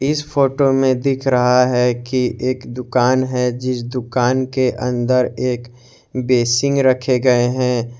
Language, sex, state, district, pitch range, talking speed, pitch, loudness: Hindi, male, Jharkhand, Garhwa, 125-130 Hz, 150 wpm, 125 Hz, -17 LUFS